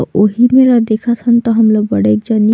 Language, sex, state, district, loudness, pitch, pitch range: Chhattisgarhi, female, Chhattisgarh, Sukma, -11 LUFS, 225 Hz, 210-235 Hz